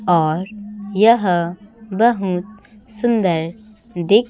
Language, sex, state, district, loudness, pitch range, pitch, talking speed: Hindi, female, Chhattisgarh, Raipur, -18 LUFS, 180-220 Hz, 205 Hz, 70 wpm